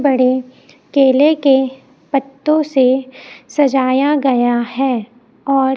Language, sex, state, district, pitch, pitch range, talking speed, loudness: Hindi, male, Chhattisgarh, Raipur, 265 Hz, 255-275 Hz, 95 wpm, -15 LUFS